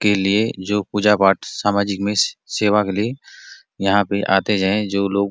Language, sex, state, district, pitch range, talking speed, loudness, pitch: Hindi, male, Chhattisgarh, Bastar, 100-105 Hz, 190 wpm, -19 LUFS, 100 Hz